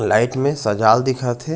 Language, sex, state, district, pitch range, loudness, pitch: Chhattisgarhi, male, Chhattisgarh, Raigarh, 110-135 Hz, -18 LUFS, 125 Hz